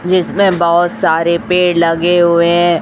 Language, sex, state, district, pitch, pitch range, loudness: Hindi, female, Chhattisgarh, Raipur, 175 Hz, 170-180 Hz, -12 LUFS